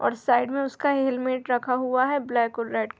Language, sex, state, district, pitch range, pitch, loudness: Hindi, female, Bihar, Sitamarhi, 245-265 Hz, 255 Hz, -24 LUFS